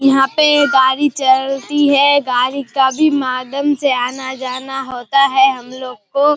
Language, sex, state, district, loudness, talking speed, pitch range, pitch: Hindi, female, Bihar, Kishanganj, -14 LUFS, 150 wpm, 260-285 Hz, 270 Hz